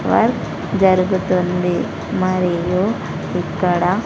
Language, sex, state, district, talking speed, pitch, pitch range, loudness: Telugu, female, Andhra Pradesh, Sri Satya Sai, 60 wpm, 185 Hz, 180-190 Hz, -18 LUFS